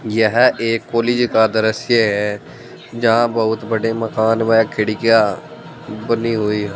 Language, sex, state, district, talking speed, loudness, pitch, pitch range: Hindi, male, Uttar Pradesh, Saharanpur, 135 wpm, -16 LUFS, 115 Hz, 110-115 Hz